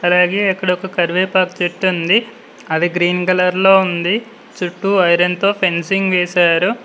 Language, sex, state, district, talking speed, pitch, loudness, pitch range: Telugu, male, Telangana, Mahabubabad, 140 wpm, 185 Hz, -15 LUFS, 175-195 Hz